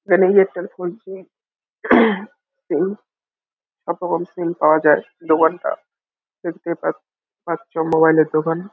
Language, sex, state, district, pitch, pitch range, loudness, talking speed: Bengali, male, West Bengal, Jalpaiguri, 175 Hz, 160-195 Hz, -18 LUFS, 115 wpm